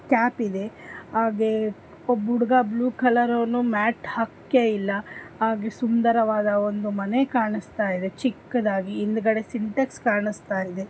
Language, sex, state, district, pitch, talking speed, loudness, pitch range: Kannada, female, Karnataka, Dharwad, 220 Hz, 105 wpm, -24 LUFS, 210-240 Hz